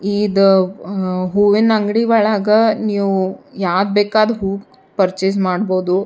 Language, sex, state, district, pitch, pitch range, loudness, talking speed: Kannada, female, Karnataka, Bijapur, 200 Hz, 190-210 Hz, -16 LUFS, 100 wpm